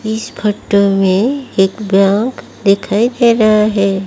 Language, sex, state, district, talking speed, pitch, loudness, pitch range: Hindi, female, Odisha, Malkangiri, 130 wpm, 205 Hz, -13 LUFS, 195-220 Hz